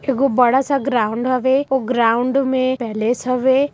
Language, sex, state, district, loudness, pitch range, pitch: Chhattisgarhi, female, Chhattisgarh, Sarguja, -17 LUFS, 245-270 Hz, 255 Hz